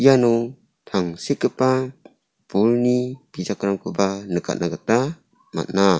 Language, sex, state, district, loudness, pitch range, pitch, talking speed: Garo, male, Meghalaya, South Garo Hills, -22 LUFS, 95-130 Hz, 115 Hz, 70 wpm